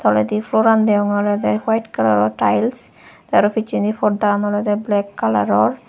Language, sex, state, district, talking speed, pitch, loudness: Chakma, female, Tripura, West Tripura, 165 wpm, 205 Hz, -17 LUFS